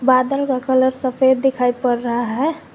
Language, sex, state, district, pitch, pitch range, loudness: Hindi, female, Jharkhand, Garhwa, 260 Hz, 245-265 Hz, -18 LUFS